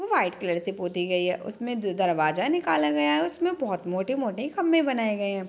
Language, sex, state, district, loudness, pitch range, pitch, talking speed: Hindi, female, Bihar, Madhepura, -26 LUFS, 180-280 Hz, 200 Hz, 240 wpm